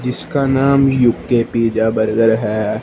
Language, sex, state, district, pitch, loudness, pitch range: Hindi, male, Punjab, Fazilka, 115 Hz, -15 LUFS, 110-130 Hz